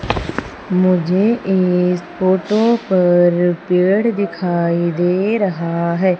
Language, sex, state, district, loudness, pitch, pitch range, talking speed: Hindi, female, Madhya Pradesh, Umaria, -16 LUFS, 180 Hz, 175-195 Hz, 85 wpm